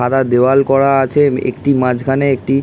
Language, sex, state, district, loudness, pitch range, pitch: Bengali, male, West Bengal, Kolkata, -13 LUFS, 130-140 Hz, 135 Hz